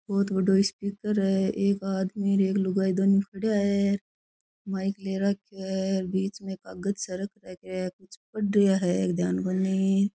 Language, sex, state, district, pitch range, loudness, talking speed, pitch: Rajasthani, female, Rajasthan, Churu, 190-200 Hz, -27 LUFS, 165 wpm, 195 Hz